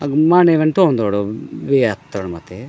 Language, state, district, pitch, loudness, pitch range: Gondi, Chhattisgarh, Sukma, 125 Hz, -16 LUFS, 100-155 Hz